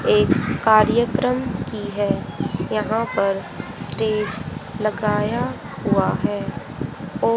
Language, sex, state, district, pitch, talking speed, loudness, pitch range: Hindi, female, Haryana, Rohtak, 210 Hz, 80 wpm, -21 LUFS, 200-220 Hz